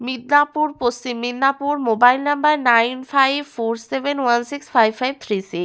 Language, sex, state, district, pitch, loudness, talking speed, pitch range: Bengali, female, West Bengal, Paschim Medinipur, 255 Hz, -18 LUFS, 160 wpm, 240-285 Hz